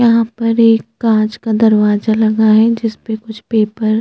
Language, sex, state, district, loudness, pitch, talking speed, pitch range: Hindi, female, Chhattisgarh, Jashpur, -13 LUFS, 220 Hz, 180 wpm, 215-225 Hz